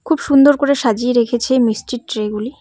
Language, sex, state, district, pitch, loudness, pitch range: Bengali, female, West Bengal, Cooch Behar, 245 Hz, -15 LUFS, 230-280 Hz